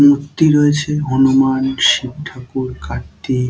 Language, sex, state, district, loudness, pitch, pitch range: Bengali, male, West Bengal, Dakshin Dinajpur, -15 LUFS, 135 Hz, 130-145 Hz